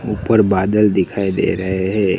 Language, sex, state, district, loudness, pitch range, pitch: Hindi, male, Gujarat, Gandhinagar, -16 LUFS, 95-105 Hz, 100 Hz